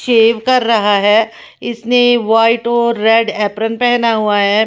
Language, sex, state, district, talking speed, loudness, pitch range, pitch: Hindi, female, Maharashtra, Washim, 155 wpm, -12 LUFS, 215-235 Hz, 225 Hz